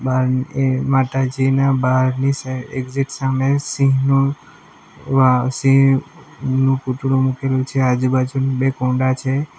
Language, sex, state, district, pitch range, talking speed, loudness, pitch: Gujarati, male, Gujarat, Valsad, 130-135 Hz, 105 wpm, -18 LUFS, 135 Hz